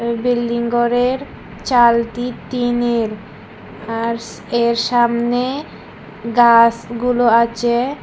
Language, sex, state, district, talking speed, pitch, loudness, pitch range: Bengali, female, Tripura, West Tripura, 75 wpm, 235 Hz, -16 LUFS, 230-245 Hz